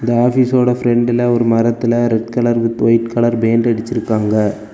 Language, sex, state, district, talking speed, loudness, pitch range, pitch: Tamil, male, Tamil Nadu, Kanyakumari, 140 wpm, -15 LUFS, 115-120 Hz, 115 Hz